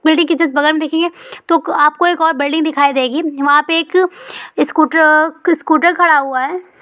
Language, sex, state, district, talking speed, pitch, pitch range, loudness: Hindi, female, West Bengal, Purulia, 195 wpm, 320 Hz, 300-345 Hz, -13 LUFS